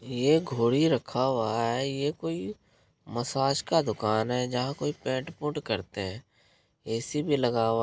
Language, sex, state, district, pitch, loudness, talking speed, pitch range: Hindi, male, Bihar, Gopalganj, 125 Hz, -28 LUFS, 170 wpm, 115-145 Hz